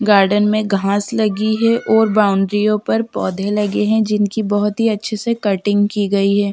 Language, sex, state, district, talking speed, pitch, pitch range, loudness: Hindi, female, Bihar, Patna, 175 wpm, 210 Hz, 205-220 Hz, -16 LUFS